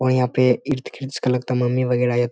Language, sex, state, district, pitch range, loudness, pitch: Hindi, male, Bihar, Jamui, 125-130 Hz, -21 LUFS, 125 Hz